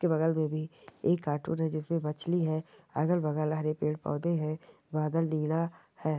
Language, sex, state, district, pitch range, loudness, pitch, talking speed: Hindi, female, Rajasthan, Nagaur, 155-165 Hz, -31 LUFS, 155 Hz, 195 wpm